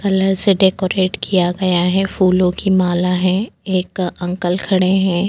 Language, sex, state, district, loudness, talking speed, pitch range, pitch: Hindi, female, Goa, North and South Goa, -16 LUFS, 160 wpm, 180-190 Hz, 185 Hz